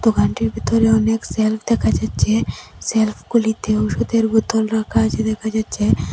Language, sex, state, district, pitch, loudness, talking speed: Bengali, female, Assam, Hailakandi, 220 Hz, -18 LUFS, 135 wpm